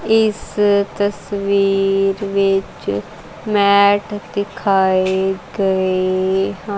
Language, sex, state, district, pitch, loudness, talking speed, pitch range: Punjabi, female, Punjab, Kapurthala, 195 Hz, -17 LUFS, 55 wpm, 190-205 Hz